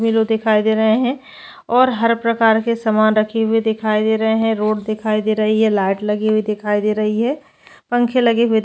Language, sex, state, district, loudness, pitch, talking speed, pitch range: Hindi, female, Chhattisgarh, Bastar, -17 LUFS, 220 Hz, 215 wpm, 215-230 Hz